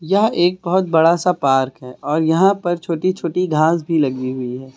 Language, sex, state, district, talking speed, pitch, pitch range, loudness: Hindi, male, Uttar Pradesh, Lucknow, 215 wpm, 165 Hz, 135-180 Hz, -17 LUFS